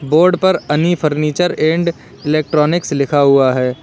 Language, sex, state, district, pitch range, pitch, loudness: Hindi, male, Uttar Pradesh, Lalitpur, 145-170 Hz, 155 Hz, -14 LUFS